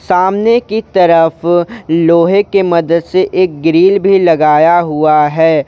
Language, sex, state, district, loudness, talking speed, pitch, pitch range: Hindi, male, Jharkhand, Garhwa, -10 LUFS, 135 wpm, 175 Hz, 165-190 Hz